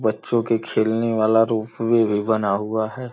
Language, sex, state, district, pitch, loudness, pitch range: Hindi, male, Uttar Pradesh, Gorakhpur, 110 Hz, -21 LUFS, 110-115 Hz